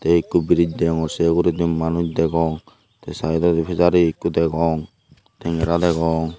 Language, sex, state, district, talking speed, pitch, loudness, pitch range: Chakma, male, Tripura, Unakoti, 140 wpm, 85 Hz, -19 LUFS, 80-85 Hz